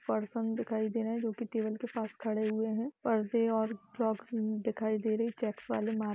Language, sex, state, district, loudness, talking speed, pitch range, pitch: Hindi, female, Uttar Pradesh, Budaun, -34 LUFS, 235 wpm, 215-230 Hz, 220 Hz